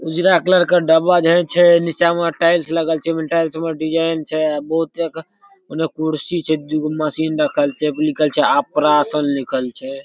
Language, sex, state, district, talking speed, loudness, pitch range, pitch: Maithili, male, Bihar, Darbhanga, 205 wpm, -17 LUFS, 150-170 Hz, 160 Hz